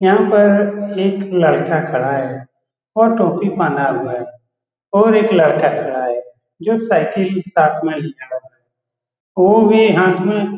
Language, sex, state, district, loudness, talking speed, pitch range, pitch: Hindi, male, Bihar, Saran, -15 LUFS, 165 wpm, 130-200 Hz, 165 Hz